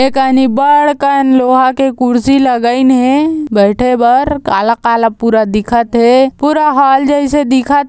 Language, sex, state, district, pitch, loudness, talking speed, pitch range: Chhattisgarhi, female, Chhattisgarh, Balrampur, 260 Hz, -10 LUFS, 145 wpm, 240-280 Hz